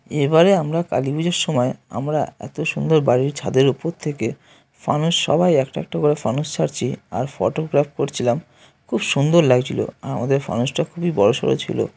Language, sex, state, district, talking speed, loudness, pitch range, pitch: Bengali, male, West Bengal, North 24 Parganas, 155 wpm, -20 LUFS, 135-165 Hz, 150 Hz